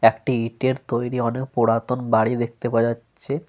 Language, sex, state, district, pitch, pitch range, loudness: Bengali, male, Jharkhand, Sahebganj, 120 Hz, 115-125 Hz, -22 LUFS